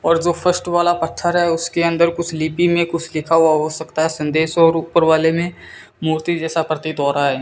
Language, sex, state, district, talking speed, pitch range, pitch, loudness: Hindi, male, Rajasthan, Bikaner, 225 wpm, 160-170 Hz, 165 Hz, -17 LUFS